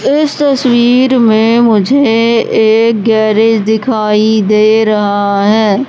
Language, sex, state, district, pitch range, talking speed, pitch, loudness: Hindi, female, Madhya Pradesh, Katni, 215-240 Hz, 100 wpm, 220 Hz, -9 LUFS